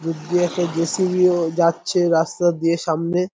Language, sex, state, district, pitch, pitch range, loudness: Bengali, male, West Bengal, North 24 Parganas, 170 Hz, 165-180 Hz, -19 LUFS